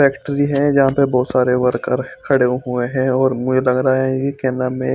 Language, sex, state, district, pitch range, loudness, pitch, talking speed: Hindi, male, Chandigarh, Chandigarh, 125-135 Hz, -17 LUFS, 130 Hz, 230 wpm